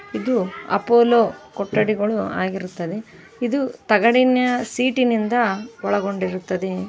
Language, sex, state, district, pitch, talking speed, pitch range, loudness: Kannada, female, Karnataka, Koppal, 215 Hz, 70 wpm, 195-240 Hz, -20 LUFS